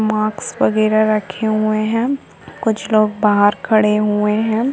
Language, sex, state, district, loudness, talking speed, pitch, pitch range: Hindi, female, Uttar Pradesh, Etah, -16 LUFS, 150 wpm, 215 Hz, 210-220 Hz